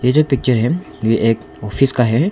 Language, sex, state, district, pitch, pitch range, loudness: Hindi, male, Arunachal Pradesh, Longding, 125 Hz, 115-135 Hz, -16 LUFS